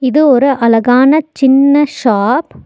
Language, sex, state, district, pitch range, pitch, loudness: Tamil, female, Tamil Nadu, Nilgiris, 245-290 Hz, 265 Hz, -10 LUFS